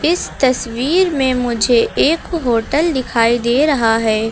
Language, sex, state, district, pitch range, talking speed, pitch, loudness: Hindi, female, Uttar Pradesh, Lucknow, 230-300 Hz, 140 wpm, 255 Hz, -15 LUFS